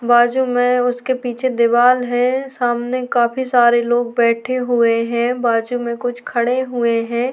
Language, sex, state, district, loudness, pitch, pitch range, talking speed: Hindi, female, Uttarakhand, Tehri Garhwal, -17 LUFS, 245 Hz, 235-250 Hz, 155 wpm